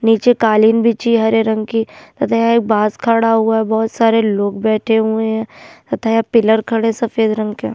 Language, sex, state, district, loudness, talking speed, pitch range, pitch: Hindi, female, Uttarakhand, Tehri Garhwal, -15 LUFS, 185 wpm, 220-225 Hz, 225 Hz